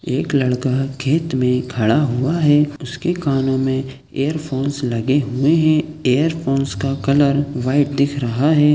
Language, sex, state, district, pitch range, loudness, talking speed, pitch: Hindi, male, Chhattisgarh, Sukma, 130-150 Hz, -18 LUFS, 150 wpm, 135 Hz